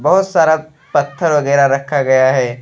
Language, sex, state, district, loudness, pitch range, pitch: Bhojpuri, male, Uttar Pradesh, Deoria, -14 LUFS, 135-155 Hz, 140 Hz